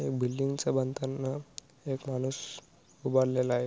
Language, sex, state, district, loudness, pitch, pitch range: Marathi, male, Maharashtra, Sindhudurg, -32 LUFS, 135 Hz, 130-135 Hz